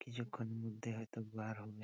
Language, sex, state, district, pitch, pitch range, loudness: Bengali, male, West Bengal, Purulia, 115 Hz, 110-115 Hz, -45 LUFS